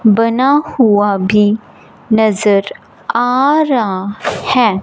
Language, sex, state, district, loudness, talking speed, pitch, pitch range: Hindi, male, Punjab, Fazilka, -13 LUFS, 85 wpm, 220 Hz, 205-255 Hz